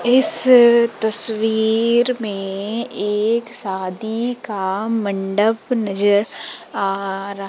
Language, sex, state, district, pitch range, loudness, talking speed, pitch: Hindi, female, Madhya Pradesh, Umaria, 200-230 Hz, -17 LUFS, 80 wpm, 220 Hz